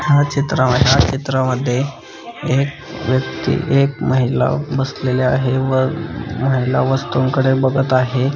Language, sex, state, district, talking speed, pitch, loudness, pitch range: Marathi, male, Maharashtra, Pune, 110 wpm, 130 Hz, -17 LUFS, 130-135 Hz